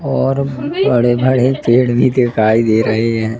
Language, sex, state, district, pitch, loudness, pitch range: Hindi, male, Madhya Pradesh, Katni, 120 Hz, -14 LUFS, 115-130 Hz